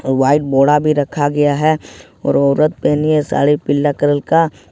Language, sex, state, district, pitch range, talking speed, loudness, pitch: Hindi, male, Jharkhand, Ranchi, 145-150 Hz, 190 wpm, -15 LUFS, 145 Hz